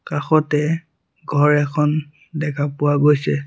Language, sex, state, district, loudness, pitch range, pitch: Assamese, male, Assam, Sonitpur, -19 LUFS, 145-155 Hz, 150 Hz